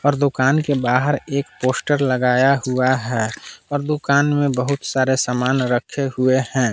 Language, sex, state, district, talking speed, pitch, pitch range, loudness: Hindi, male, Jharkhand, Palamu, 160 wpm, 130 Hz, 125-145 Hz, -19 LUFS